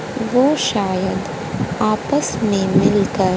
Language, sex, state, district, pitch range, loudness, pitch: Hindi, female, Haryana, Jhajjar, 195-245 Hz, -18 LUFS, 210 Hz